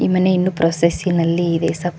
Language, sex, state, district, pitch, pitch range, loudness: Kannada, female, Karnataka, Koppal, 175 Hz, 165-185 Hz, -17 LUFS